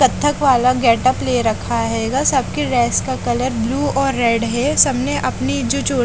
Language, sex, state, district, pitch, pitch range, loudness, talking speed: Hindi, female, Haryana, Charkhi Dadri, 245 Hz, 230-270 Hz, -17 LUFS, 210 wpm